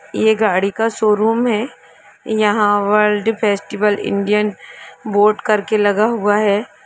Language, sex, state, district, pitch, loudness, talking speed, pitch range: Hindi, female, Jharkhand, Jamtara, 210 Hz, -16 LUFS, 115 wpm, 205-220 Hz